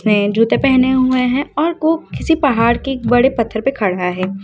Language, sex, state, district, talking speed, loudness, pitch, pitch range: Hindi, female, Uttar Pradesh, Lucknow, 200 wpm, -15 LUFS, 250 Hz, 215-270 Hz